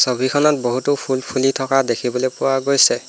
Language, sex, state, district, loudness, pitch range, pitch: Assamese, male, Assam, Hailakandi, -18 LUFS, 130-140 Hz, 130 Hz